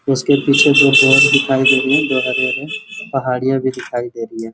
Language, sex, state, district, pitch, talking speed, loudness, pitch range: Hindi, male, Jharkhand, Sahebganj, 135 Hz, 265 wpm, -13 LUFS, 130-140 Hz